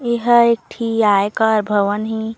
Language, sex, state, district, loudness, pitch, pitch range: Chhattisgarhi, female, Chhattisgarh, Raigarh, -16 LUFS, 220 Hz, 210-235 Hz